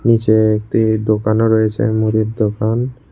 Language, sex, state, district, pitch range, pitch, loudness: Bengali, male, Tripura, West Tripura, 110-115 Hz, 110 Hz, -15 LUFS